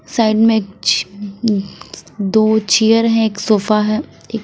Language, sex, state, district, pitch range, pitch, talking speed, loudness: Hindi, female, Punjab, Kapurthala, 205-225 Hz, 220 Hz, 120 wpm, -15 LUFS